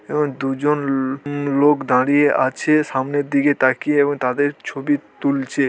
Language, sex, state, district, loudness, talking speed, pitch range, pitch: Bengali, male, West Bengal, Dakshin Dinajpur, -19 LUFS, 160 wpm, 135-145 Hz, 140 Hz